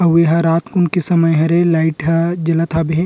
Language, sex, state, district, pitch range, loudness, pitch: Chhattisgarhi, male, Chhattisgarh, Rajnandgaon, 165-175 Hz, -14 LUFS, 165 Hz